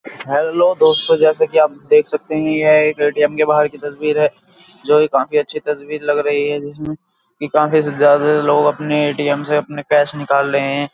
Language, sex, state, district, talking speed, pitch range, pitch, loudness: Hindi, male, Uttar Pradesh, Jyotiba Phule Nagar, 200 wpm, 145-155 Hz, 150 Hz, -15 LUFS